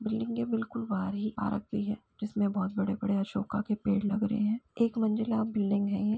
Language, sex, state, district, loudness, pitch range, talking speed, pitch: Hindi, female, Uttar Pradesh, Jalaun, -31 LUFS, 205-220 Hz, 235 wpm, 210 Hz